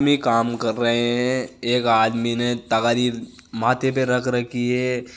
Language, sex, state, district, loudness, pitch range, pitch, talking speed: Marwari, male, Rajasthan, Nagaur, -21 LUFS, 120-125 Hz, 120 Hz, 150 wpm